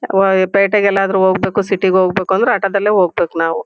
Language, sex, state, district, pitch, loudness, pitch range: Kannada, female, Karnataka, Shimoga, 195 Hz, -14 LUFS, 185-195 Hz